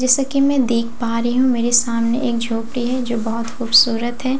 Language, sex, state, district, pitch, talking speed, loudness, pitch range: Hindi, female, Bihar, Katihar, 240 Hz, 230 wpm, -17 LUFS, 230-255 Hz